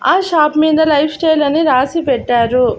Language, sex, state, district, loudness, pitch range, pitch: Telugu, female, Andhra Pradesh, Annamaya, -13 LUFS, 265-320 Hz, 305 Hz